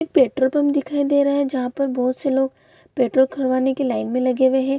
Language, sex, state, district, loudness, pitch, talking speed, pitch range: Hindi, female, Bihar, Bhagalpur, -20 LUFS, 265 Hz, 250 wpm, 255-280 Hz